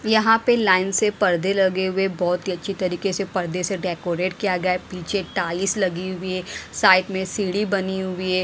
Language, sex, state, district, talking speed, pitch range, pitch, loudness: Hindi, female, Himachal Pradesh, Shimla, 205 wpm, 185-195 Hz, 190 Hz, -22 LUFS